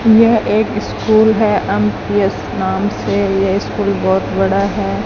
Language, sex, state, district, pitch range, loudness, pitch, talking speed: Hindi, female, Rajasthan, Bikaner, 195-215 Hz, -15 LUFS, 200 Hz, 140 wpm